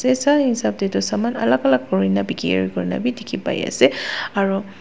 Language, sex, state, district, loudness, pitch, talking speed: Nagamese, female, Nagaland, Dimapur, -20 LUFS, 195 Hz, 185 wpm